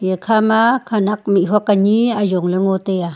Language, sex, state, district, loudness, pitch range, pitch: Wancho, female, Arunachal Pradesh, Longding, -16 LUFS, 190-220 Hz, 205 Hz